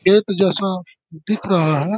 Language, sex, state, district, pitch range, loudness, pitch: Hindi, male, Jharkhand, Sahebganj, 175-200 Hz, -18 LUFS, 190 Hz